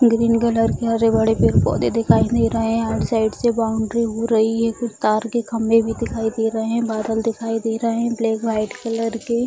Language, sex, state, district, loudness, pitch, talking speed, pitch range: Hindi, female, Bihar, Jamui, -19 LUFS, 225 Hz, 220 wpm, 220-230 Hz